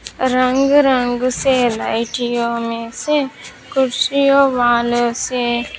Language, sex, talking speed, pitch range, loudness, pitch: Hindi, female, 95 wpm, 240-270 Hz, -16 LUFS, 250 Hz